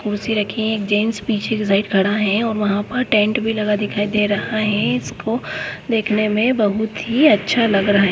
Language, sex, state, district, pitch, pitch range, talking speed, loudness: Hindi, female, Goa, North and South Goa, 210 Hz, 205-220 Hz, 200 wpm, -18 LUFS